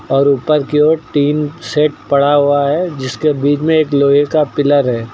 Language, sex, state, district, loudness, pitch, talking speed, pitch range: Hindi, male, Uttar Pradesh, Lucknow, -13 LUFS, 145 Hz, 200 wpm, 140-150 Hz